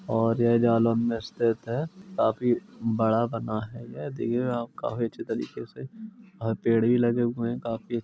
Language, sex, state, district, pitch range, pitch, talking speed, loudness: Hindi, male, Uttar Pradesh, Jalaun, 115-120 Hz, 115 Hz, 180 wpm, -27 LUFS